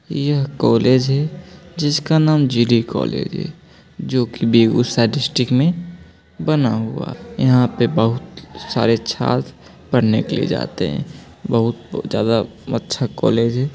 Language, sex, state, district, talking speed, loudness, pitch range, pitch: Angika, male, Bihar, Begusarai, 135 wpm, -18 LUFS, 115-145 Hz, 125 Hz